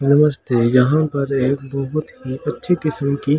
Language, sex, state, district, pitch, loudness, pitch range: Hindi, male, Delhi, New Delhi, 140 Hz, -19 LUFS, 135-150 Hz